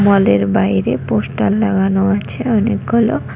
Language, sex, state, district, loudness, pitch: Bengali, female, West Bengal, Cooch Behar, -15 LUFS, 195 Hz